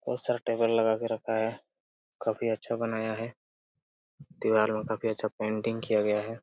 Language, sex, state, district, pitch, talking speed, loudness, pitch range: Hindi, male, Uttar Pradesh, Hamirpur, 110 Hz, 170 wpm, -30 LUFS, 110-115 Hz